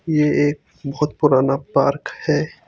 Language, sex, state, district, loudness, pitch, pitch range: Hindi, male, Chandigarh, Chandigarh, -19 LUFS, 145 Hz, 140-150 Hz